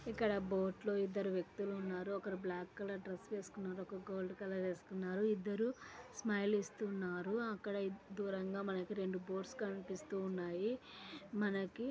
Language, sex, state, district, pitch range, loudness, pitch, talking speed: Telugu, female, Andhra Pradesh, Anantapur, 190-205 Hz, -42 LUFS, 195 Hz, 130 wpm